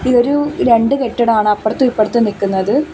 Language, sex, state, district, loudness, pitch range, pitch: Malayalam, female, Kerala, Kollam, -14 LUFS, 215-260 Hz, 235 Hz